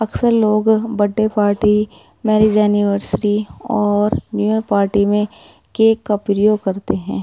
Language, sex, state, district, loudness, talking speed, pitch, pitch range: Hindi, female, Uttar Pradesh, Budaun, -16 LUFS, 135 wpm, 210 Hz, 205-215 Hz